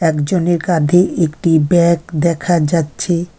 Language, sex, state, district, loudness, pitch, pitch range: Bengali, female, West Bengal, Alipurduar, -15 LUFS, 170 Hz, 160-175 Hz